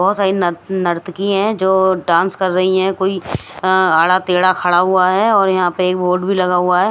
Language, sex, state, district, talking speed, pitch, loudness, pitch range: Hindi, female, Himachal Pradesh, Shimla, 200 wpm, 185 Hz, -15 LUFS, 180-190 Hz